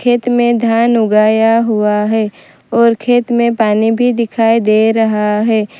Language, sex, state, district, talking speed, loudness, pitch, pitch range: Hindi, female, Gujarat, Valsad, 155 wpm, -12 LUFS, 225 Hz, 215-235 Hz